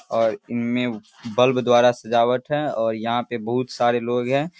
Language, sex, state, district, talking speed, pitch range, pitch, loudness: Hindi, male, Bihar, Darbhanga, 170 wpm, 120-125 Hz, 120 Hz, -21 LUFS